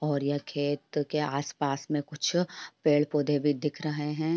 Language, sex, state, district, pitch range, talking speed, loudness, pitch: Hindi, female, Bihar, Jamui, 145-150 Hz, 190 wpm, -29 LUFS, 150 Hz